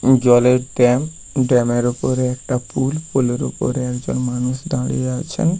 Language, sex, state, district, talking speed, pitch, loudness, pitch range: Bengali, male, West Bengal, Paschim Medinipur, 140 wpm, 125 Hz, -18 LUFS, 125-130 Hz